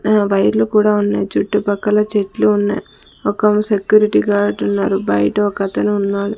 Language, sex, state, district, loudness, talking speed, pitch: Telugu, female, Andhra Pradesh, Sri Satya Sai, -16 LUFS, 130 wpm, 200 Hz